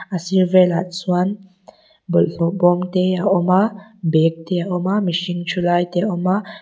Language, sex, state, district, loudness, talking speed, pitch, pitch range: Mizo, female, Mizoram, Aizawl, -18 LUFS, 200 wpm, 180 Hz, 175-190 Hz